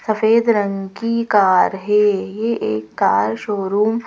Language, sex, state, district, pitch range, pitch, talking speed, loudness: Hindi, female, Madhya Pradesh, Bhopal, 195-225 Hz, 210 Hz, 145 wpm, -17 LUFS